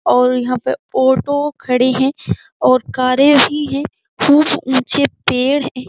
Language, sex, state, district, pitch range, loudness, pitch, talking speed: Hindi, female, Uttar Pradesh, Jyotiba Phule Nagar, 255-290 Hz, -15 LUFS, 270 Hz, 140 wpm